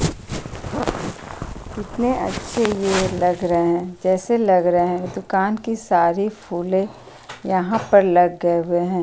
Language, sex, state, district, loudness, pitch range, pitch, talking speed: Hindi, female, Uttar Pradesh, Jyotiba Phule Nagar, -20 LUFS, 175-205 Hz, 185 Hz, 135 wpm